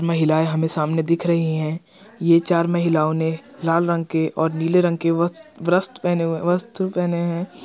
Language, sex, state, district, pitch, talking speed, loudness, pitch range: Hindi, male, Uttar Pradesh, Jyotiba Phule Nagar, 170 Hz, 175 wpm, -20 LUFS, 160-175 Hz